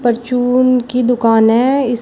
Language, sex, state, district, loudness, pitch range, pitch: Hindi, female, Uttar Pradesh, Shamli, -13 LUFS, 235-250 Hz, 245 Hz